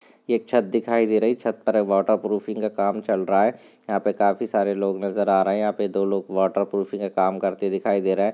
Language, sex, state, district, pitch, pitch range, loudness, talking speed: Hindi, male, Rajasthan, Nagaur, 100 Hz, 100-110 Hz, -23 LUFS, 215 wpm